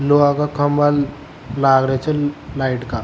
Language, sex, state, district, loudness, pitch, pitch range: Rajasthani, male, Rajasthan, Churu, -18 LUFS, 145 Hz, 135-145 Hz